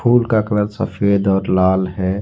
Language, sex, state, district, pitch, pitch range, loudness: Hindi, male, Jharkhand, Ranchi, 100 Hz, 95-110 Hz, -17 LUFS